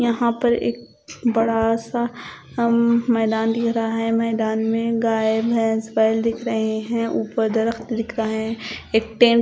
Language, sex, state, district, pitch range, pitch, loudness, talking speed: Hindi, female, Odisha, Khordha, 220-235 Hz, 225 Hz, -21 LUFS, 145 wpm